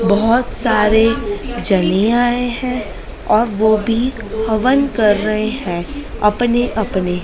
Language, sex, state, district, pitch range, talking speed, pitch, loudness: Hindi, female, Madhya Pradesh, Dhar, 210-240 Hz, 115 wpm, 220 Hz, -16 LUFS